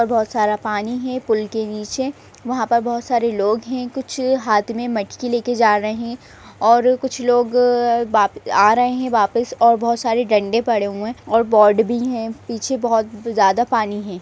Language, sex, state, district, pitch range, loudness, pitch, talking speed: Hindi, female, Chhattisgarh, Raigarh, 215-245 Hz, -18 LUFS, 230 Hz, 185 wpm